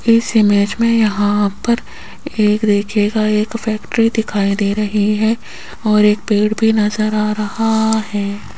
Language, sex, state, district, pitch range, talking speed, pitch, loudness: Hindi, female, Rajasthan, Jaipur, 210-220 Hz, 145 wpm, 215 Hz, -15 LUFS